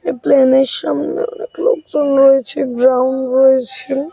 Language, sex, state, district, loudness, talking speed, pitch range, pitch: Bengali, female, West Bengal, Paschim Medinipur, -14 LUFS, 130 wpm, 260-295 Hz, 270 Hz